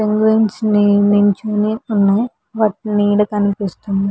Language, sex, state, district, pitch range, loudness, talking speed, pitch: Telugu, female, Andhra Pradesh, Visakhapatnam, 205-215 Hz, -16 LUFS, 90 wpm, 210 Hz